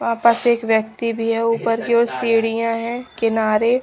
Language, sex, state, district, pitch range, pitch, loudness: Hindi, female, Punjab, Pathankot, 225-235 Hz, 230 Hz, -19 LUFS